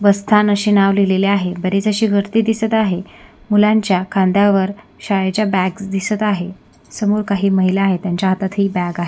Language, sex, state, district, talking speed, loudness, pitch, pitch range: Marathi, female, Maharashtra, Sindhudurg, 170 wpm, -16 LUFS, 195 Hz, 190-210 Hz